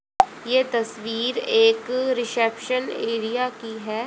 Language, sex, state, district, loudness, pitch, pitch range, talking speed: Hindi, female, Haryana, Rohtak, -23 LUFS, 240 Hz, 225-260 Hz, 105 wpm